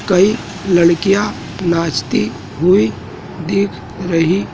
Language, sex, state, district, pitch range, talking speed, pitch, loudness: Hindi, male, Madhya Pradesh, Dhar, 145-195 Hz, 80 wpm, 175 Hz, -16 LUFS